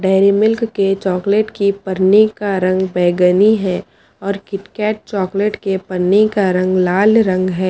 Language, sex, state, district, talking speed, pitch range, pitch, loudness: Hindi, female, Haryana, Charkhi Dadri, 155 wpm, 185-210 Hz, 195 Hz, -15 LUFS